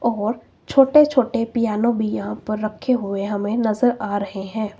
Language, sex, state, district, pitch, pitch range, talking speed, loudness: Hindi, female, Himachal Pradesh, Shimla, 220 Hz, 205-240 Hz, 175 wpm, -20 LUFS